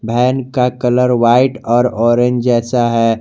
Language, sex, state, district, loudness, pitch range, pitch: Hindi, male, Jharkhand, Garhwa, -13 LUFS, 115-125 Hz, 120 Hz